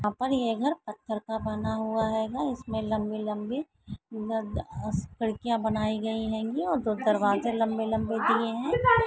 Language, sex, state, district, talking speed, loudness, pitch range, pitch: Hindi, female, Maharashtra, Dhule, 145 wpm, -29 LUFS, 220-240 Hz, 220 Hz